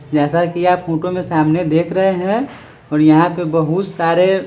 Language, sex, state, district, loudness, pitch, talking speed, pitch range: Hindi, male, Bihar, Sitamarhi, -15 LUFS, 170 Hz, 185 wpm, 160-180 Hz